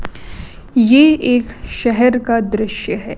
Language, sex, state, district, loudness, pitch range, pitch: Hindi, female, Chhattisgarh, Raipur, -14 LUFS, 230-250 Hz, 240 Hz